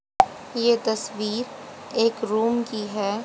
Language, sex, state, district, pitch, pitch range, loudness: Hindi, female, Haryana, Jhajjar, 230 Hz, 215-235 Hz, -24 LUFS